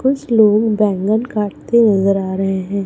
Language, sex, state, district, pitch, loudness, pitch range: Hindi, female, Chhattisgarh, Raipur, 210 Hz, -15 LUFS, 195-225 Hz